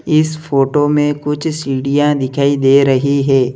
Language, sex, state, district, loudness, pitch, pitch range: Hindi, male, Uttar Pradesh, Lalitpur, -14 LUFS, 140 Hz, 135-150 Hz